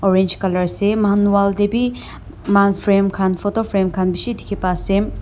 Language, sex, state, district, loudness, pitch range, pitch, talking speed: Nagamese, female, Nagaland, Dimapur, -18 LUFS, 190-205 Hz, 200 Hz, 185 wpm